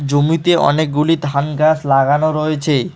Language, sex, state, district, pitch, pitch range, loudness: Bengali, male, West Bengal, Alipurduar, 150 Hz, 145-155 Hz, -15 LUFS